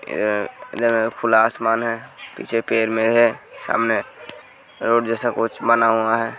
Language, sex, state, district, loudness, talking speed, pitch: Hindi, male, Uttar Pradesh, Hamirpur, -20 LUFS, 150 wpm, 115 Hz